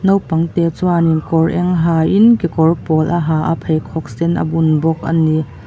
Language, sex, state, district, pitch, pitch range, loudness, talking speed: Mizo, female, Mizoram, Aizawl, 165 Hz, 160-170 Hz, -15 LUFS, 180 wpm